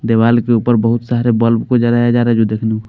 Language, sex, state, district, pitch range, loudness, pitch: Hindi, male, Haryana, Rohtak, 115-120 Hz, -13 LUFS, 115 Hz